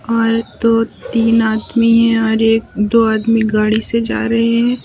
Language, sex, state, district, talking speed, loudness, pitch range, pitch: Hindi, female, Uttar Pradesh, Lucknow, 175 wpm, -14 LUFS, 220-230 Hz, 230 Hz